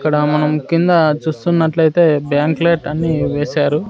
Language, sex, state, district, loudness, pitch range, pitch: Telugu, male, Andhra Pradesh, Sri Satya Sai, -15 LUFS, 150-165 Hz, 155 Hz